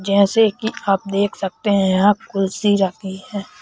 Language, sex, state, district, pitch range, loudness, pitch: Hindi, male, Madhya Pradesh, Bhopal, 195-210 Hz, -18 LUFS, 200 Hz